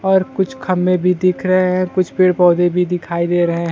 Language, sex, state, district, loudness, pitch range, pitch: Hindi, male, Bihar, Kaimur, -16 LUFS, 175-185 Hz, 180 Hz